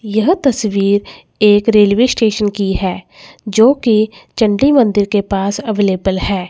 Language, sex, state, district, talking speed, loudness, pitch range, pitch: Hindi, female, Chandigarh, Chandigarh, 140 wpm, -13 LUFS, 195-220 Hz, 210 Hz